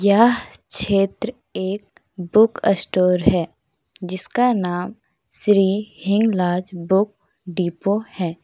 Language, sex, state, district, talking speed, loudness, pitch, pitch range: Hindi, female, Jharkhand, Deoghar, 90 wpm, -20 LUFS, 195 Hz, 180-215 Hz